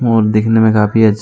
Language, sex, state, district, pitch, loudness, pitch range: Hindi, male, Jharkhand, Deoghar, 110 Hz, -12 LUFS, 105-110 Hz